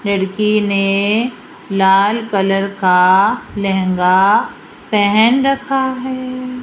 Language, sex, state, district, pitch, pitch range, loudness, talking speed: Hindi, female, Rajasthan, Jaipur, 205 Hz, 195-245 Hz, -14 LUFS, 80 wpm